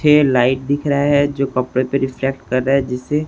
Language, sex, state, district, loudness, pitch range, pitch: Hindi, male, Chhattisgarh, Raipur, -17 LUFS, 130-145 Hz, 135 Hz